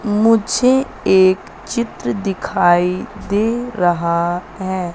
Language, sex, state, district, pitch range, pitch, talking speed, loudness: Hindi, female, Madhya Pradesh, Katni, 180-225 Hz, 195 Hz, 85 wpm, -17 LUFS